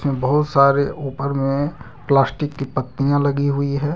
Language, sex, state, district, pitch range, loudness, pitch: Hindi, male, Jharkhand, Deoghar, 135-145 Hz, -19 LUFS, 140 Hz